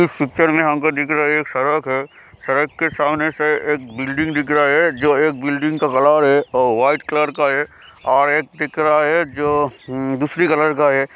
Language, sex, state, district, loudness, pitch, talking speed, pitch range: Hindi, male, Bihar, Kishanganj, -17 LUFS, 150 Hz, 215 wpm, 140-155 Hz